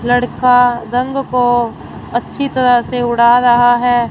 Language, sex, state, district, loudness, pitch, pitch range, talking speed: Hindi, female, Punjab, Fazilka, -13 LUFS, 245 Hz, 240-250 Hz, 130 wpm